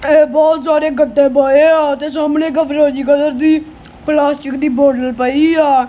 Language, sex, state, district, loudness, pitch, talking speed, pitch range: Punjabi, female, Punjab, Kapurthala, -13 LUFS, 300 Hz, 155 wpm, 280-310 Hz